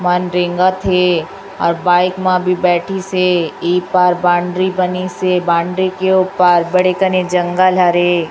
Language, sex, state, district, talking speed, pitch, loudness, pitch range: Hindi, female, Chhattisgarh, Raipur, 145 wpm, 180 Hz, -14 LUFS, 175-185 Hz